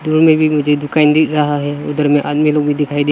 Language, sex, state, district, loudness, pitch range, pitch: Hindi, male, Arunachal Pradesh, Lower Dibang Valley, -14 LUFS, 145-155 Hz, 150 Hz